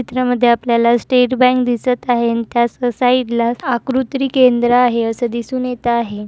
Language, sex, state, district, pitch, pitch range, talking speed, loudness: Marathi, female, Maharashtra, Nagpur, 245 Hz, 235-255 Hz, 160 wpm, -15 LUFS